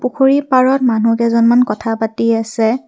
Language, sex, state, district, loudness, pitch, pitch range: Assamese, female, Assam, Kamrup Metropolitan, -14 LUFS, 230 Hz, 225-255 Hz